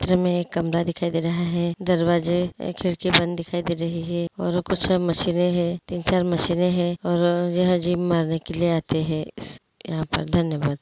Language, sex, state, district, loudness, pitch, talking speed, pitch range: Hindi, female, Andhra Pradesh, Chittoor, -22 LUFS, 175 Hz, 165 wpm, 170-175 Hz